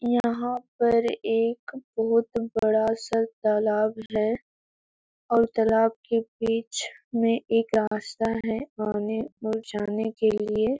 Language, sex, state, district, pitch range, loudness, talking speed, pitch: Hindi, female, Uttar Pradesh, Etah, 220-230 Hz, -26 LUFS, 115 wpm, 225 Hz